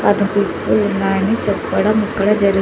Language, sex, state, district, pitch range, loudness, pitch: Telugu, female, Andhra Pradesh, Sri Satya Sai, 195-210 Hz, -16 LUFS, 205 Hz